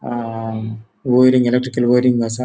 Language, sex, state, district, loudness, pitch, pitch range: Konkani, male, Goa, North and South Goa, -16 LUFS, 120 Hz, 115-125 Hz